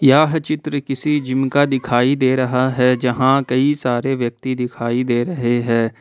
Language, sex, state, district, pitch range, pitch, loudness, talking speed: Hindi, male, Jharkhand, Ranchi, 125-140 Hz, 130 Hz, -18 LUFS, 170 wpm